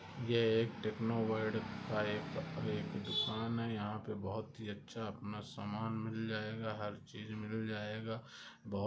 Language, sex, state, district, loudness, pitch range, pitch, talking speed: Hindi, male, West Bengal, Kolkata, -40 LUFS, 105-115 Hz, 110 Hz, 150 wpm